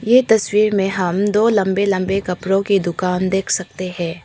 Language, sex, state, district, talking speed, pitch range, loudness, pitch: Hindi, female, Arunachal Pradesh, Papum Pare, 185 wpm, 185-205 Hz, -17 LUFS, 195 Hz